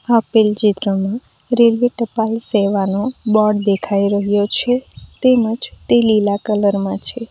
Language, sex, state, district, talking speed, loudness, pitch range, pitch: Gujarati, female, Gujarat, Valsad, 125 wpm, -16 LUFS, 200-235 Hz, 215 Hz